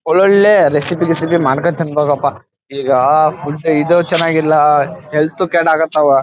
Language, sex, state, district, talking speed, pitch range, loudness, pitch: Kannada, male, Karnataka, Dharwad, 145 wpm, 145-170 Hz, -13 LUFS, 155 Hz